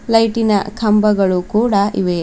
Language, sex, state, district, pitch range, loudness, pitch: Kannada, female, Karnataka, Bidar, 195-225 Hz, -15 LUFS, 210 Hz